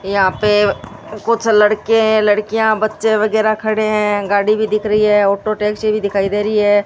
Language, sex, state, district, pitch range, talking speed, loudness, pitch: Hindi, female, Rajasthan, Bikaner, 205-215 Hz, 190 wpm, -15 LUFS, 215 Hz